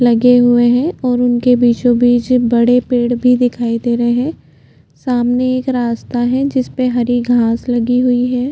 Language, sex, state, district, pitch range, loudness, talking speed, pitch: Hindi, female, Chhattisgarh, Jashpur, 240-250 Hz, -13 LUFS, 170 wpm, 245 Hz